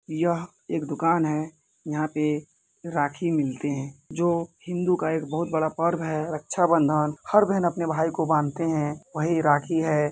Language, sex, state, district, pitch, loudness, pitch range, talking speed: Hindi, male, Bihar, Purnia, 160 Hz, -25 LUFS, 150-170 Hz, 170 wpm